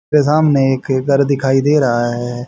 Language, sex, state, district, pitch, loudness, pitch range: Hindi, male, Haryana, Rohtak, 135 Hz, -14 LUFS, 125-145 Hz